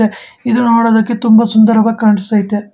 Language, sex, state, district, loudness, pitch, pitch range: Kannada, male, Karnataka, Bangalore, -11 LUFS, 220 Hz, 215-230 Hz